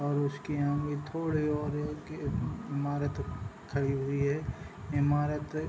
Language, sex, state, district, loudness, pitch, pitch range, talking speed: Hindi, male, Bihar, Sitamarhi, -33 LUFS, 145 Hz, 140-150 Hz, 145 wpm